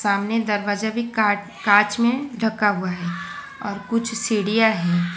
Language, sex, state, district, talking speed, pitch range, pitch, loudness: Hindi, female, Gujarat, Valsad, 150 wpm, 200-225 Hz, 210 Hz, -21 LUFS